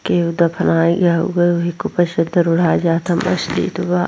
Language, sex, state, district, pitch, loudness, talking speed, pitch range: Hindi, female, Bihar, Vaishali, 170 Hz, -16 LUFS, 105 wpm, 170-175 Hz